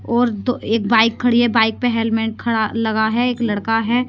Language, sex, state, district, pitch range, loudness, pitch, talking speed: Hindi, female, Haryana, Rohtak, 225-240 Hz, -17 LUFS, 225 Hz, 205 wpm